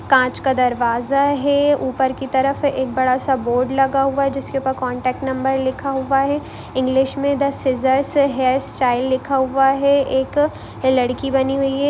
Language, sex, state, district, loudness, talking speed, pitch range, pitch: Hindi, female, Goa, North and South Goa, -18 LUFS, 180 wpm, 260-275 Hz, 265 Hz